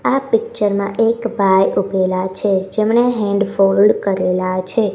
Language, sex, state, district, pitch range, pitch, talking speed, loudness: Gujarati, female, Gujarat, Gandhinagar, 190-225 Hz, 200 Hz, 145 wpm, -16 LUFS